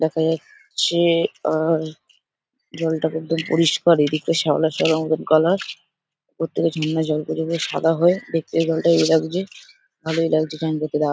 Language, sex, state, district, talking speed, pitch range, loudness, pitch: Bengali, male, West Bengal, Dakshin Dinajpur, 150 wpm, 155-165 Hz, -20 LUFS, 160 Hz